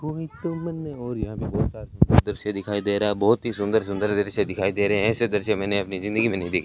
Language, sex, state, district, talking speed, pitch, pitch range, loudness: Hindi, male, Rajasthan, Bikaner, 245 wpm, 105 Hz, 100-115 Hz, -24 LUFS